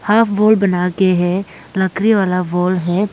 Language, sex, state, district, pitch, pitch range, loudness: Hindi, female, Arunachal Pradesh, Lower Dibang Valley, 190 Hz, 180-205 Hz, -15 LUFS